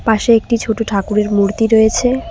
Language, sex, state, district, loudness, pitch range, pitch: Bengali, female, West Bengal, Cooch Behar, -14 LUFS, 210-230 Hz, 220 Hz